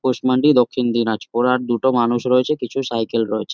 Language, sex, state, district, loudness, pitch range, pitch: Bengali, male, West Bengal, Jhargram, -18 LUFS, 115-130 Hz, 125 Hz